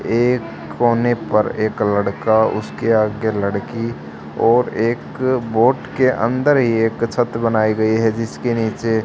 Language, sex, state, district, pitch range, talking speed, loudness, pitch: Hindi, male, Haryana, Charkhi Dadri, 110-120 Hz, 145 wpm, -18 LUFS, 115 Hz